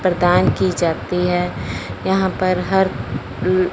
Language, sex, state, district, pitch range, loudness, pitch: Hindi, male, Punjab, Fazilka, 165-185 Hz, -19 LUFS, 180 Hz